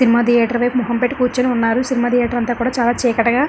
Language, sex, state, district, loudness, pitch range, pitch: Telugu, female, Andhra Pradesh, Srikakulam, -16 LUFS, 235-250 Hz, 240 Hz